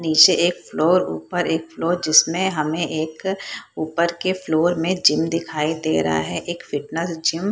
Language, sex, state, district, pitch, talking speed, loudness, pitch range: Hindi, female, Bihar, Purnia, 165 Hz, 175 wpm, -20 LUFS, 155-175 Hz